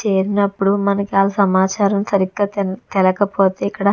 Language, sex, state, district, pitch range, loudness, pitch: Telugu, female, Andhra Pradesh, Visakhapatnam, 195-200 Hz, -17 LUFS, 200 Hz